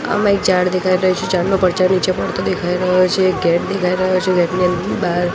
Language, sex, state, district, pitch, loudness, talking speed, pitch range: Gujarati, female, Gujarat, Gandhinagar, 185 Hz, -16 LUFS, 225 wpm, 180-185 Hz